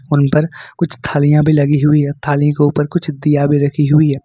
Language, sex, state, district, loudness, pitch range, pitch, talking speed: Hindi, male, Jharkhand, Ranchi, -14 LUFS, 145-150 Hz, 150 Hz, 240 wpm